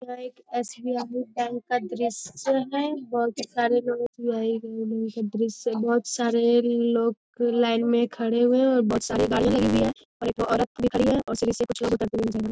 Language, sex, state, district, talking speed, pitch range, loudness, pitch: Hindi, female, Bihar, Jamui, 210 wpm, 230-245 Hz, -25 LUFS, 235 Hz